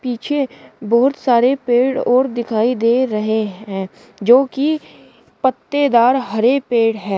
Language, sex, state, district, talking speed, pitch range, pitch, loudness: Hindi, female, Uttar Pradesh, Shamli, 125 wpm, 225-265 Hz, 245 Hz, -16 LUFS